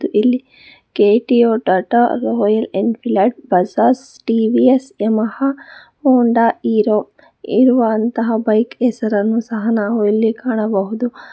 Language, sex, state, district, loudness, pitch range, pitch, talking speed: Kannada, female, Karnataka, Bangalore, -16 LUFS, 215-245 Hz, 225 Hz, 100 wpm